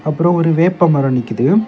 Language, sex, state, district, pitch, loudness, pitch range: Tamil, male, Tamil Nadu, Kanyakumari, 165 Hz, -14 LUFS, 135-175 Hz